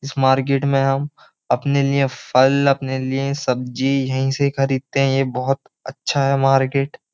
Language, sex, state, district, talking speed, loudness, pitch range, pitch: Hindi, male, Uttar Pradesh, Jyotiba Phule Nagar, 170 wpm, -19 LUFS, 130-140 Hz, 135 Hz